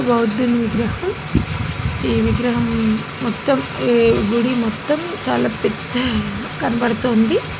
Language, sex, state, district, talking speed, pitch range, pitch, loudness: Telugu, female, Telangana, Nalgonda, 85 wpm, 230-245 Hz, 235 Hz, -18 LUFS